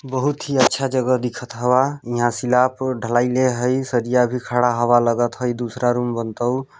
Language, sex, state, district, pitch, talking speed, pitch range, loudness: Hindi, male, Chhattisgarh, Balrampur, 125 Hz, 185 wpm, 120-130 Hz, -19 LUFS